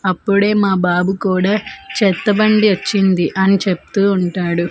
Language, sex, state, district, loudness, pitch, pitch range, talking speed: Telugu, female, Andhra Pradesh, Manyam, -15 LUFS, 195 Hz, 185-205 Hz, 125 wpm